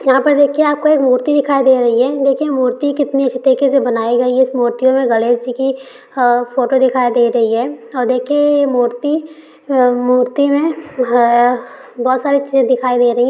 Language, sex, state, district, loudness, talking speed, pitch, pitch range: Hindi, female, Bihar, Bhagalpur, -14 LUFS, 190 wpm, 260 Hz, 245-280 Hz